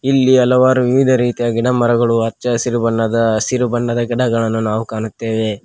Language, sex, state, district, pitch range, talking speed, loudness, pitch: Kannada, male, Karnataka, Koppal, 115-125 Hz, 115 wpm, -15 LUFS, 120 Hz